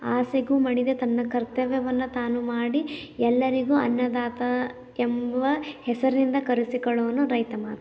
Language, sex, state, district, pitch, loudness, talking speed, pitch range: Kannada, female, Karnataka, Belgaum, 250 Hz, -25 LUFS, 100 wpm, 240-265 Hz